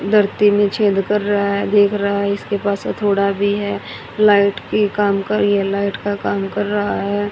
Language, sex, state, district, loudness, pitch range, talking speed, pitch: Hindi, female, Haryana, Rohtak, -17 LUFS, 200-205 Hz, 205 wpm, 205 Hz